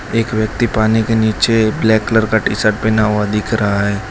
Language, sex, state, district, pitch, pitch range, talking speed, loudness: Hindi, male, Gujarat, Valsad, 110 Hz, 105-110 Hz, 220 wpm, -15 LUFS